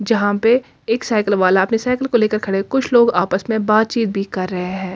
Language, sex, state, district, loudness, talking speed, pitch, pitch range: Hindi, female, Delhi, New Delhi, -17 LUFS, 240 wpm, 215 Hz, 195-235 Hz